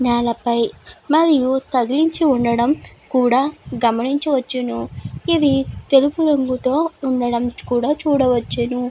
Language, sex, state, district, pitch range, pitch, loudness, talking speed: Telugu, female, Andhra Pradesh, Guntur, 240-290 Hz, 255 Hz, -18 LUFS, 80 wpm